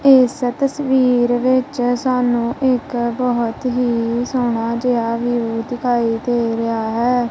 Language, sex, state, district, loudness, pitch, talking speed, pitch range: Punjabi, female, Punjab, Kapurthala, -18 LUFS, 245 Hz, 115 wpm, 235-250 Hz